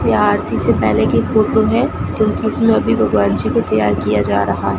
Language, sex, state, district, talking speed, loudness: Hindi, female, Rajasthan, Bikaner, 215 wpm, -15 LUFS